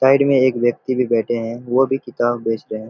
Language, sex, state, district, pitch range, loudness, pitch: Hindi, male, Jharkhand, Sahebganj, 115-130 Hz, -18 LUFS, 120 Hz